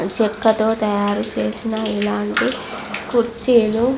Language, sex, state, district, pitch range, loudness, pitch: Telugu, female, Andhra Pradesh, Visakhapatnam, 205-230 Hz, -19 LUFS, 220 Hz